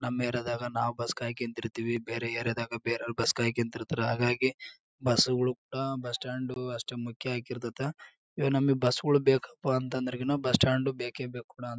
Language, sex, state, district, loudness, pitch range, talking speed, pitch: Kannada, male, Karnataka, Bellary, -30 LUFS, 115-130 Hz, 185 wpm, 120 Hz